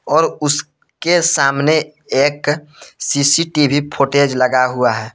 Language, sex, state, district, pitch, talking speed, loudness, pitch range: Hindi, male, Jharkhand, Palamu, 145 Hz, 105 wpm, -15 LUFS, 140-150 Hz